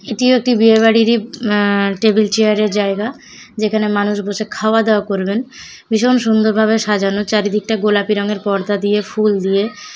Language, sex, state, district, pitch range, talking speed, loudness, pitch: Bengali, male, West Bengal, Jalpaiguri, 205-225 Hz, 155 wpm, -15 LUFS, 215 Hz